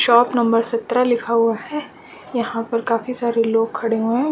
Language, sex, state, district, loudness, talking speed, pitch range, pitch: Hindi, female, Uttarakhand, Uttarkashi, -19 LUFS, 195 wpm, 230-240 Hz, 230 Hz